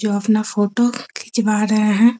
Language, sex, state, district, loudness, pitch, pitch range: Hindi, female, Bihar, Araria, -18 LUFS, 215 Hz, 210-230 Hz